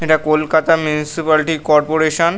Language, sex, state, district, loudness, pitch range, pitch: Bengali, male, West Bengal, North 24 Parganas, -15 LUFS, 155-160 Hz, 155 Hz